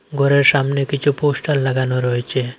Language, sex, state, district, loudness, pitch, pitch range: Bengali, male, Assam, Hailakandi, -17 LUFS, 140 Hz, 130-140 Hz